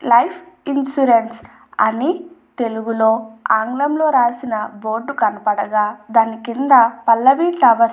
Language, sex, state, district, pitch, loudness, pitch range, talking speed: Telugu, female, Andhra Pradesh, Anantapur, 230 Hz, -17 LUFS, 220-275 Hz, 100 wpm